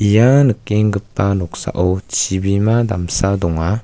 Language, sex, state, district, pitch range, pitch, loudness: Garo, male, Meghalaya, West Garo Hills, 95-110 Hz, 100 Hz, -16 LUFS